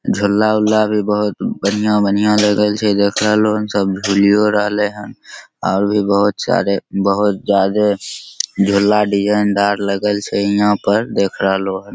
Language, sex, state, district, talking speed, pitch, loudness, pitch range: Maithili, male, Bihar, Begusarai, 150 wpm, 105 Hz, -15 LUFS, 100-105 Hz